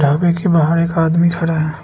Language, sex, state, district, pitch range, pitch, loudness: Hindi, male, Arunachal Pradesh, Lower Dibang Valley, 160-170 Hz, 165 Hz, -15 LUFS